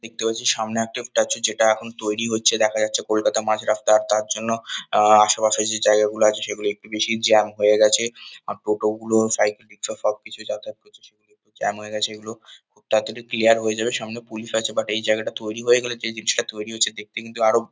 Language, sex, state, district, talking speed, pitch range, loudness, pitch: Bengali, male, West Bengal, North 24 Parganas, 210 wpm, 105-115 Hz, -21 LUFS, 110 Hz